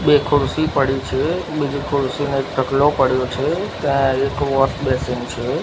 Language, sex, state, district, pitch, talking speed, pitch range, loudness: Gujarati, male, Gujarat, Gandhinagar, 140 Hz, 170 wpm, 135-145 Hz, -19 LUFS